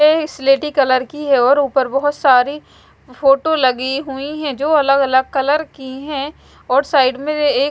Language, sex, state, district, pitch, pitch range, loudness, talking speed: Hindi, male, Punjab, Fazilka, 275 Hz, 265-295 Hz, -16 LUFS, 180 wpm